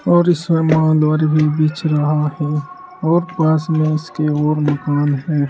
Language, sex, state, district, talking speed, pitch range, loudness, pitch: Hindi, male, Uttar Pradesh, Saharanpur, 155 wpm, 150-160 Hz, -16 LUFS, 155 Hz